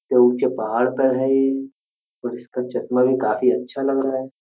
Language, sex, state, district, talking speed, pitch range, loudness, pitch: Hindi, male, Uttar Pradesh, Jyotiba Phule Nagar, 190 wpm, 125-135 Hz, -20 LUFS, 130 Hz